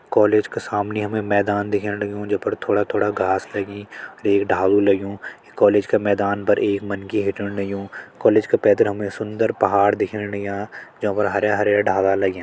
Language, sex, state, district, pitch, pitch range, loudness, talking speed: Hindi, male, Uttarakhand, Tehri Garhwal, 100 Hz, 100-105 Hz, -20 LUFS, 175 wpm